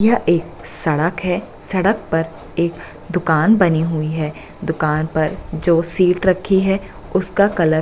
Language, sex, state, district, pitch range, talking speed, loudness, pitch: Hindi, female, Bihar, Bhagalpur, 160-190 Hz, 155 wpm, -18 LUFS, 170 Hz